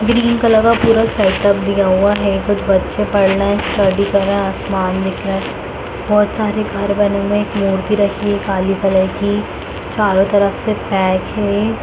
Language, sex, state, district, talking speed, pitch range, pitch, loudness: Hindi, female, Bihar, Lakhisarai, 200 wpm, 195-210 Hz, 200 Hz, -15 LUFS